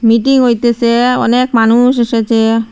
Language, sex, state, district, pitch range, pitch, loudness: Bengali, female, Assam, Hailakandi, 230-250 Hz, 235 Hz, -11 LUFS